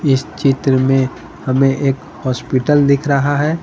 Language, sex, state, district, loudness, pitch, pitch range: Hindi, male, Bihar, Patna, -15 LUFS, 135 Hz, 130-145 Hz